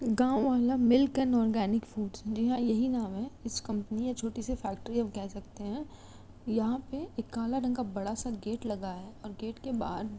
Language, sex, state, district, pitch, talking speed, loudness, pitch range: Hindi, female, Uttar Pradesh, Jalaun, 230 Hz, 190 wpm, -32 LUFS, 215-250 Hz